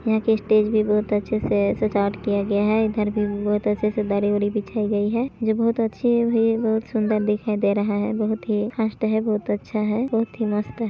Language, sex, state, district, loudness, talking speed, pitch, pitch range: Hindi, male, Chhattisgarh, Balrampur, -22 LUFS, 230 wpm, 215 Hz, 210-220 Hz